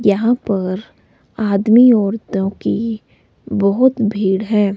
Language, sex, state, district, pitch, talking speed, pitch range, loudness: Hindi, female, Himachal Pradesh, Shimla, 210 Hz, 100 wpm, 200-225 Hz, -16 LUFS